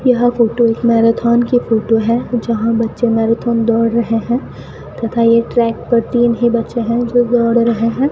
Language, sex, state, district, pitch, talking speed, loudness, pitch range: Hindi, female, Rajasthan, Bikaner, 235 Hz, 185 wpm, -14 LUFS, 230-240 Hz